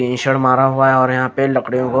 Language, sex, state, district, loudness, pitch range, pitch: Hindi, male, Punjab, Kapurthala, -15 LUFS, 130-135 Hz, 130 Hz